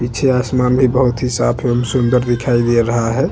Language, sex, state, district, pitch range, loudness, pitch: Hindi, male, Chhattisgarh, Bastar, 120-125 Hz, -15 LUFS, 125 Hz